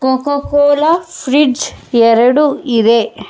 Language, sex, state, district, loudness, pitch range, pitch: Kannada, female, Karnataka, Bangalore, -12 LUFS, 235-290 Hz, 265 Hz